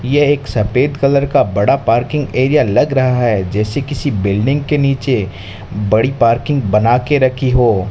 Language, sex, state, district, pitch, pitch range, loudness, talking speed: Hindi, male, Rajasthan, Bikaner, 130 Hz, 105-140 Hz, -14 LUFS, 165 wpm